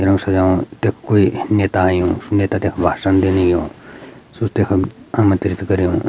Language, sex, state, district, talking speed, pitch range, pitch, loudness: Garhwali, male, Uttarakhand, Uttarkashi, 150 wpm, 95-100 Hz, 95 Hz, -17 LUFS